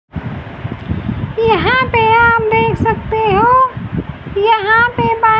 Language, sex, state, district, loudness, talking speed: Hindi, female, Haryana, Charkhi Dadri, -13 LUFS, 100 wpm